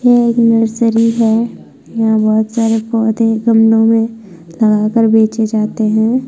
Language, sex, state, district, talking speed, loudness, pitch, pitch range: Hindi, female, Bihar, Darbhanga, 135 wpm, -12 LUFS, 225 Hz, 220-230 Hz